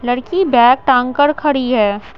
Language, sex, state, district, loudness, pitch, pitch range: Hindi, female, Bihar, Patna, -13 LUFS, 255 Hz, 245-290 Hz